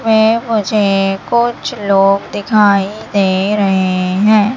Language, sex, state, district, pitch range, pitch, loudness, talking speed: Hindi, male, Madhya Pradesh, Katni, 195-220 Hz, 205 Hz, -13 LUFS, 105 wpm